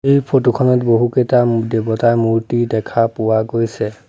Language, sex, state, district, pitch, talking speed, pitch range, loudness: Assamese, male, Assam, Sonitpur, 115 Hz, 115 wpm, 115-125 Hz, -15 LUFS